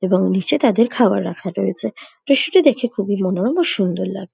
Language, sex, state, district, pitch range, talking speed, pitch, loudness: Bengali, female, West Bengal, Dakshin Dinajpur, 190-255 Hz, 180 wpm, 205 Hz, -18 LUFS